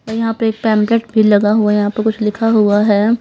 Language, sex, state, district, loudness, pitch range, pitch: Hindi, female, Bihar, Patna, -14 LUFS, 210-225 Hz, 220 Hz